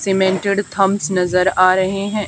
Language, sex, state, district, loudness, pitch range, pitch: Hindi, female, Haryana, Charkhi Dadri, -16 LUFS, 185-200 Hz, 190 Hz